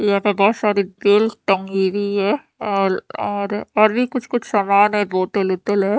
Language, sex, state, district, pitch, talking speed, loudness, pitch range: Hindi, female, Haryana, Charkhi Dadri, 205 Hz, 140 wpm, -18 LUFS, 195-210 Hz